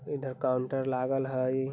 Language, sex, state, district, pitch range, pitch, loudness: Bajjika, male, Bihar, Vaishali, 130-135 Hz, 130 Hz, -31 LUFS